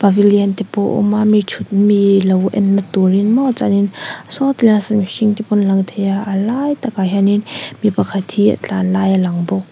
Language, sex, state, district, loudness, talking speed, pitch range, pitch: Mizo, female, Mizoram, Aizawl, -15 LUFS, 235 wpm, 195-210 Hz, 200 Hz